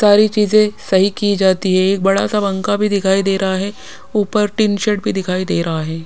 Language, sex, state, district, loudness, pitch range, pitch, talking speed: Hindi, male, Bihar, Kaimur, -16 LUFS, 190-210 Hz, 200 Hz, 225 wpm